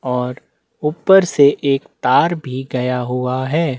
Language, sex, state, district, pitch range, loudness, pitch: Hindi, male, Chhattisgarh, Jashpur, 125-160 Hz, -17 LUFS, 135 Hz